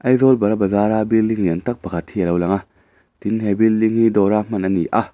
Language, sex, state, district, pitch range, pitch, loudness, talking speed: Mizo, male, Mizoram, Aizawl, 95-110 Hz, 105 Hz, -18 LUFS, 235 wpm